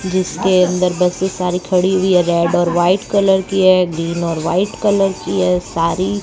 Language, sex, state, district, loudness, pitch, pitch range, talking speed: Hindi, female, Rajasthan, Bikaner, -15 LUFS, 180 Hz, 175-190 Hz, 190 wpm